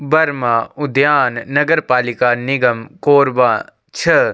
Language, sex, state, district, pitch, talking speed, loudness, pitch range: Hindi, male, Chhattisgarh, Korba, 135 Hz, 110 wpm, -15 LUFS, 125-145 Hz